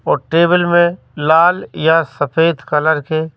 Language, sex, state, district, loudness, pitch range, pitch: Hindi, male, Madhya Pradesh, Katni, -14 LUFS, 150-170 Hz, 160 Hz